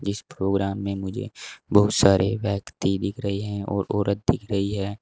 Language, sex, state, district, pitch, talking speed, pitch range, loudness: Hindi, male, Uttar Pradesh, Shamli, 100 Hz, 180 wpm, 100-105 Hz, -24 LUFS